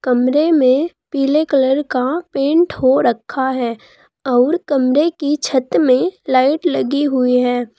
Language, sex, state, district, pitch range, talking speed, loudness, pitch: Hindi, female, Uttar Pradesh, Saharanpur, 255-300 Hz, 140 wpm, -16 LUFS, 270 Hz